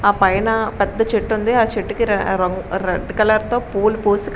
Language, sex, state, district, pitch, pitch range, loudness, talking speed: Telugu, female, Andhra Pradesh, Srikakulam, 215 Hz, 200-225 Hz, -18 LUFS, 180 wpm